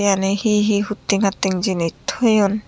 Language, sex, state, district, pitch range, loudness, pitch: Chakma, female, Tripura, Unakoti, 195-210 Hz, -19 LUFS, 200 Hz